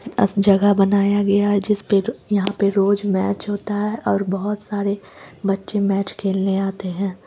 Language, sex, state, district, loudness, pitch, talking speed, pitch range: Hindi, female, Bihar, Lakhisarai, -20 LUFS, 200 Hz, 175 wpm, 195-205 Hz